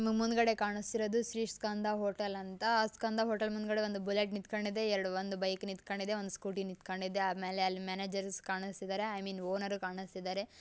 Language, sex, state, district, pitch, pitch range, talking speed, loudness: Kannada, female, Karnataka, Dakshina Kannada, 200 Hz, 190-215 Hz, 160 wpm, -36 LUFS